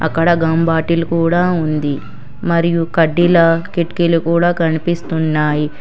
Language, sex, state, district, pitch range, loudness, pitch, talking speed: Telugu, female, Telangana, Hyderabad, 160-170 Hz, -15 LUFS, 165 Hz, 105 wpm